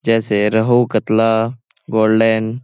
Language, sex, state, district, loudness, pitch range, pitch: Hindi, male, Bihar, Lakhisarai, -15 LUFS, 110-115 Hz, 110 Hz